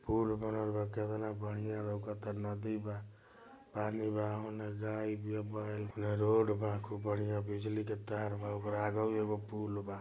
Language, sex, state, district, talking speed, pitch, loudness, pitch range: Bhojpuri, male, Bihar, Gopalganj, 170 wpm, 105 Hz, -38 LUFS, 105-110 Hz